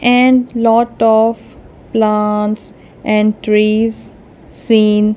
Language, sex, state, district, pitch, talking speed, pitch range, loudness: English, female, Punjab, Kapurthala, 220 Hz, 80 wpm, 210-230 Hz, -13 LUFS